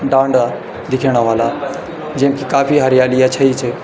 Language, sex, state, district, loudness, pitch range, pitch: Garhwali, male, Uttarakhand, Tehri Garhwal, -14 LUFS, 125-140 Hz, 130 Hz